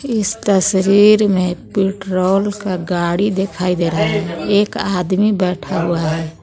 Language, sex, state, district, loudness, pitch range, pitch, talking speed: Hindi, female, Jharkhand, Garhwa, -16 LUFS, 180-205 Hz, 190 Hz, 140 wpm